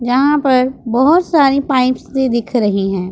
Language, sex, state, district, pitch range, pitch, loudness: Hindi, female, Punjab, Pathankot, 235-275 Hz, 255 Hz, -14 LUFS